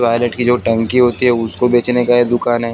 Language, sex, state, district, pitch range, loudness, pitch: Hindi, male, Haryana, Jhajjar, 120-125 Hz, -14 LUFS, 120 Hz